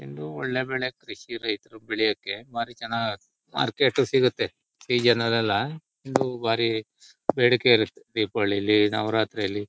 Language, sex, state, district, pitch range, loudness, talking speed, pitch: Kannada, male, Karnataka, Shimoga, 105-125 Hz, -25 LUFS, 110 wpm, 115 Hz